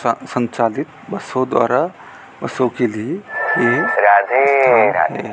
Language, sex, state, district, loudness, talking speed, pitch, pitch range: Hindi, male, Rajasthan, Bikaner, -16 LUFS, 125 wpm, 125 Hz, 115-135 Hz